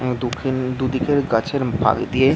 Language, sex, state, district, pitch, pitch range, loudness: Bengali, male, West Bengal, Jhargram, 130 Hz, 125-130 Hz, -20 LUFS